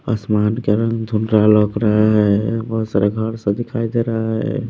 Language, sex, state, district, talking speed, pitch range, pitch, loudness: Hindi, male, Bihar, West Champaran, 190 wpm, 105-115 Hz, 110 Hz, -17 LUFS